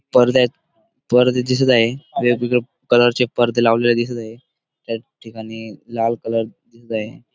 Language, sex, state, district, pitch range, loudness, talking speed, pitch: Marathi, male, Maharashtra, Dhule, 115-125 Hz, -18 LUFS, 130 wpm, 120 Hz